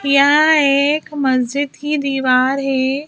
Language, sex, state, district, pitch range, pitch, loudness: Hindi, female, Madhya Pradesh, Bhopal, 265-295 Hz, 280 Hz, -15 LUFS